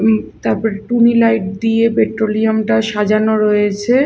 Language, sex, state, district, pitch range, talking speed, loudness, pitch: Bengali, female, Odisha, Khordha, 210-225 Hz, 120 wpm, -15 LUFS, 220 Hz